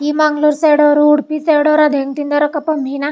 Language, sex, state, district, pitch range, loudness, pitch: Kannada, female, Karnataka, Chamarajanagar, 290-305 Hz, -13 LUFS, 295 Hz